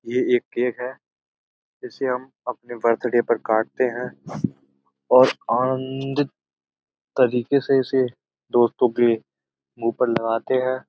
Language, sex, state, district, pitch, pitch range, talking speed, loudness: Hindi, male, Uttar Pradesh, Budaun, 120 Hz, 110-130 Hz, 115 wpm, -22 LUFS